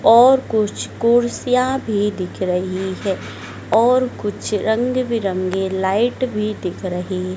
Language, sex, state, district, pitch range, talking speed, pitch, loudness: Hindi, female, Madhya Pradesh, Dhar, 190-240 Hz, 120 wpm, 210 Hz, -19 LUFS